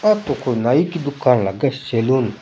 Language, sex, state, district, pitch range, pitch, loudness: Rajasthani, male, Rajasthan, Churu, 120-145 Hz, 130 Hz, -18 LUFS